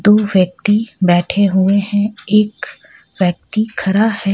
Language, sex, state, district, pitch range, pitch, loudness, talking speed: Hindi, female, Jharkhand, Ranchi, 190-210 Hz, 200 Hz, -15 LUFS, 125 wpm